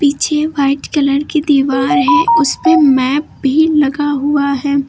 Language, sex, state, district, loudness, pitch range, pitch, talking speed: Hindi, female, Uttar Pradesh, Lucknow, -13 LUFS, 275-305 Hz, 285 Hz, 145 wpm